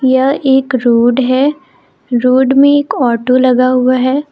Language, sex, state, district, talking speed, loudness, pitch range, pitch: Hindi, female, Jharkhand, Palamu, 155 wpm, -11 LUFS, 255-275 Hz, 260 Hz